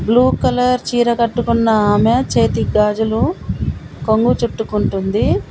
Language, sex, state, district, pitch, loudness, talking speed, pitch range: Telugu, female, Telangana, Komaram Bheem, 220 Hz, -16 LUFS, 100 wpm, 205-235 Hz